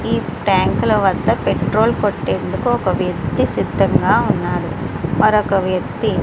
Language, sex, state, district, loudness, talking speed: Telugu, female, Andhra Pradesh, Srikakulam, -17 LUFS, 115 wpm